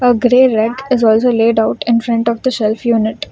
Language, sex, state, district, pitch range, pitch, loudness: English, female, Karnataka, Bangalore, 225-250 Hz, 235 Hz, -13 LUFS